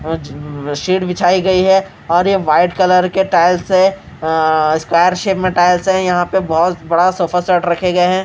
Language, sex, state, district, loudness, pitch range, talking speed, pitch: Hindi, male, Bihar, Katihar, -14 LUFS, 165-185 Hz, 195 wpm, 180 Hz